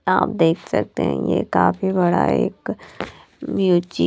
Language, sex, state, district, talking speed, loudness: Hindi, female, Punjab, Kapurthala, 145 wpm, -20 LUFS